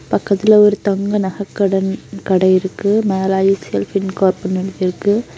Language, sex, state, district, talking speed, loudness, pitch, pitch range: Tamil, female, Tamil Nadu, Kanyakumari, 125 wpm, -16 LUFS, 195 Hz, 190-205 Hz